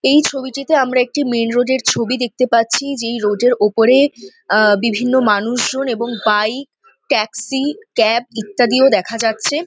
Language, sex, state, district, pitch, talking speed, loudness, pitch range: Bengali, female, West Bengal, North 24 Parganas, 245 Hz, 155 wpm, -15 LUFS, 225-270 Hz